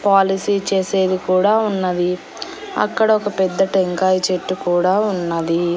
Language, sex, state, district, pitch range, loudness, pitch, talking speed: Telugu, female, Andhra Pradesh, Annamaya, 180-195 Hz, -18 LUFS, 190 Hz, 115 wpm